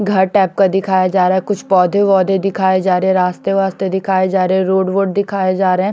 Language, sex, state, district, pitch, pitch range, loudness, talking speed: Hindi, female, Chandigarh, Chandigarh, 190 Hz, 185-195 Hz, -14 LUFS, 265 wpm